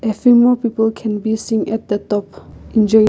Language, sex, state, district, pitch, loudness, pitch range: English, female, Nagaland, Kohima, 220 Hz, -16 LUFS, 215-225 Hz